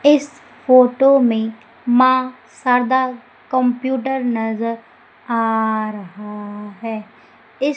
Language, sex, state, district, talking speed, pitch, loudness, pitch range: Hindi, female, Madhya Pradesh, Umaria, 85 wpm, 245 Hz, -17 LUFS, 220-255 Hz